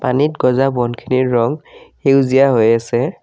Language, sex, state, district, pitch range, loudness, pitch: Assamese, male, Assam, Kamrup Metropolitan, 120-135 Hz, -15 LUFS, 130 Hz